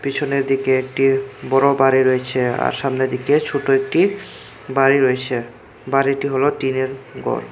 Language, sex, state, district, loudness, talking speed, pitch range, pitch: Bengali, male, Tripura, Unakoti, -18 LUFS, 125 wpm, 130-140 Hz, 135 Hz